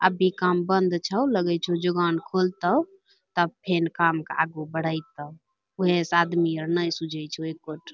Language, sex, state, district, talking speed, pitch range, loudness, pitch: Angika, female, Bihar, Bhagalpur, 175 wpm, 160-185 Hz, -25 LUFS, 175 Hz